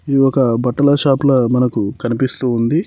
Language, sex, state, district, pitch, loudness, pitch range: Telugu, male, Telangana, Mahabubabad, 130 Hz, -15 LUFS, 120-140 Hz